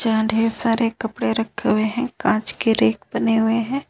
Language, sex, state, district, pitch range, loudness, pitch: Hindi, female, Jharkhand, Ranchi, 220-230 Hz, -20 LUFS, 225 Hz